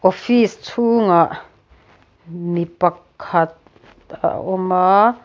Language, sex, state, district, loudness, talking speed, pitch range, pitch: Mizo, female, Mizoram, Aizawl, -18 LUFS, 80 wpm, 175-215 Hz, 185 Hz